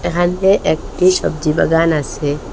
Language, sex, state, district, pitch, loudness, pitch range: Bengali, female, Assam, Hailakandi, 170 Hz, -15 LUFS, 155-180 Hz